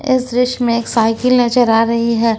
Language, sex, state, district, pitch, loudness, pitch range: Hindi, female, Jharkhand, Ranchi, 235 Hz, -14 LUFS, 230-250 Hz